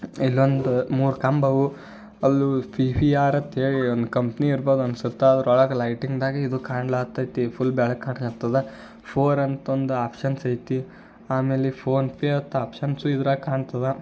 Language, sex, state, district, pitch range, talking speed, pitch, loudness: Kannada, male, Karnataka, Bijapur, 125-135 Hz, 150 wpm, 135 Hz, -23 LUFS